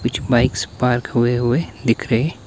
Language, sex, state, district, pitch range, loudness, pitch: Hindi, male, Himachal Pradesh, Shimla, 115-125 Hz, -19 LUFS, 120 Hz